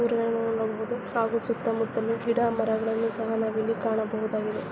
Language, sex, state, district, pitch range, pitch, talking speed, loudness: Kannada, female, Karnataka, Raichur, 220-230 Hz, 225 Hz, 115 wpm, -27 LUFS